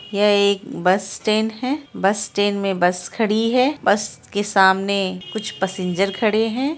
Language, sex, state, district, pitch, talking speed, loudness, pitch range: Hindi, female, Bihar, Araria, 205 Hz, 170 wpm, -20 LUFS, 195-220 Hz